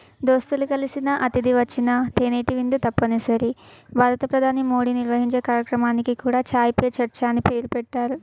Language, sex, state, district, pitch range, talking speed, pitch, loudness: Telugu, female, Telangana, Karimnagar, 240-260 Hz, 130 wpm, 245 Hz, -21 LUFS